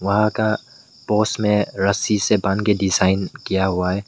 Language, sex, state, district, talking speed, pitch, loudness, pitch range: Hindi, male, Meghalaya, West Garo Hills, 175 wpm, 100 Hz, -19 LUFS, 95-105 Hz